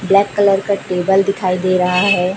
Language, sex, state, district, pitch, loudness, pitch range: Hindi, female, Chhattisgarh, Raipur, 190 Hz, -15 LUFS, 185-200 Hz